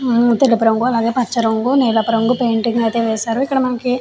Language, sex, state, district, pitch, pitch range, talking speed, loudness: Telugu, female, Andhra Pradesh, Chittoor, 235 Hz, 225-250 Hz, 180 wpm, -16 LUFS